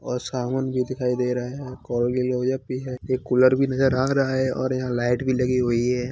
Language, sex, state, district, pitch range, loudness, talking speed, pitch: Hindi, male, Uttar Pradesh, Hamirpur, 125-130 Hz, -23 LUFS, 245 wpm, 125 Hz